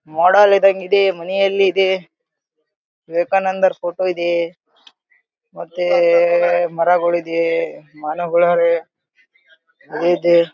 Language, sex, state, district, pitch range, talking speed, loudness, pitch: Kannada, male, Karnataka, Gulbarga, 170-190 Hz, 80 wpm, -16 LUFS, 175 Hz